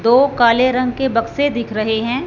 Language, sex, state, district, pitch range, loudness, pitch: Hindi, female, Punjab, Fazilka, 230-265 Hz, -16 LUFS, 245 Hz